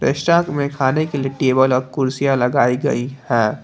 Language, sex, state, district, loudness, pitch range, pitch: Hindi, male, Jharkhand, Palamu, -18 LUFS, 130-140 Hz, 135 Hz